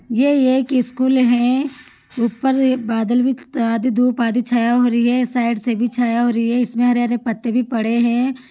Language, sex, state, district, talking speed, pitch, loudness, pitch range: Hindi, female, Rajasthan, Churu, 210 wpm, 245 Hz, -17 LUFS, 235-255 Hz